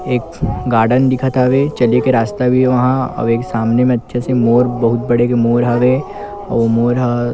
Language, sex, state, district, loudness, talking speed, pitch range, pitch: Chhattisgarhi, male, Chhattisgarh, Kabirdham, -14 LUFS, 195 wpm, 120-130 Hz, 125 Hz